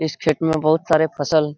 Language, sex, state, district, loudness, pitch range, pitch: Hindi, male, Bihar, Jahanabad, -19 LUFS, 155-160 Hz, 155 Hz